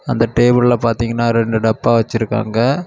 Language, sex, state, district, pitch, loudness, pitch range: Tamil, male, Tamil Nadu, Kanyakumari, 115 Hz, -15 LUFS, 115-120 Hz